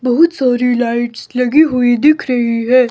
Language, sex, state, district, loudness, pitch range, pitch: Hindi, male, Himachal Pradesh, Shimla, -13 LUFS, 240-265 Hz, 250 Hz